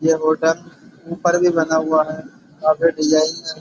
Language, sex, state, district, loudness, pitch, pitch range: Hindi, male, Uttar Pradesh, Budaun, -18 LUFS, 160 Hz, 155-165 Hz